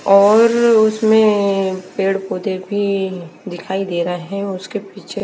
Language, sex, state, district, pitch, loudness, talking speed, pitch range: Hindi, female, Maharashtra, Gondia, 195 Hz, -16 LUFS, 125 wpm, 185-205 Hz